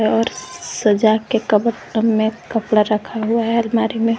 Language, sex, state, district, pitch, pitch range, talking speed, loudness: Hindi, female, Jharkhand, Garhwa, 225 Hz, 215-230 Hz, 145 wpm, -18 LUFS